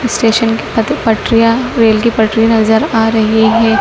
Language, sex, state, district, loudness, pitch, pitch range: Hindi, female, Madhya Pradesh, Dhar, -11 LUFS, 225 Hz, 220-230 Hz